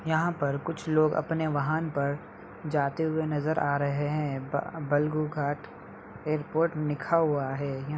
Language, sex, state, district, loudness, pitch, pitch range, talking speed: Hindi, male, Uttar Pradesh, Budaun, -29 LUFS, 150 Hz, 145-160 Hz, 160 wpm